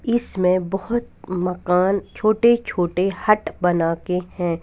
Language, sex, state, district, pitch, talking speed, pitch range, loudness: Hindi, female, Punjab, Fazilka, 180 Hz, 115 wpm, 180-215 Hz, -21 LUFS